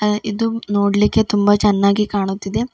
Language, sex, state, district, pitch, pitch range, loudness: Kannada, female, Karnataka, Bidar, 210 Hz, 200-220 Hz, -17 LUFS